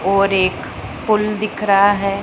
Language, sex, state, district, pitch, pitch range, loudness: Hindi, male, Punjab, Pathankot, 195 Hz, 190-210 Hz, -16 LUFS